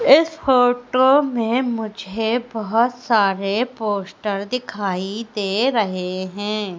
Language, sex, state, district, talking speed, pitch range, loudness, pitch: Hindi, female, Madhya Pradesh, Umaria, 95 wpm, 200-245 Hz, -20 LUFS, 220 Hz